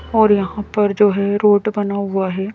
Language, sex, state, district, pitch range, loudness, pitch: Hindi, female, Madhya Pradesh, Bhopal, 200-210 Hz, -16 LUFS, 205 Hz